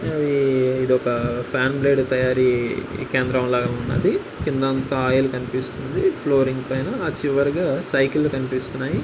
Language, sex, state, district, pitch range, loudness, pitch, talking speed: Telugu, male, Andhra Pradesh, Anantapur, 130-140 Hz, -21 LUFS, 130 Hz, 100 wpm